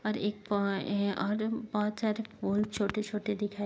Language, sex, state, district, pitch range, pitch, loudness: Hindi, female, Maharashtra, Dhule, 205-215 Hz, 210 Hz, -32 LUFS